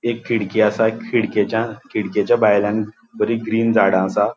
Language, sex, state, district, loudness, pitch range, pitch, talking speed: Konkani, male, Goa, North and South Goa, -18 LUFS, 105-115 Hz, 110 Hz, 140 wpm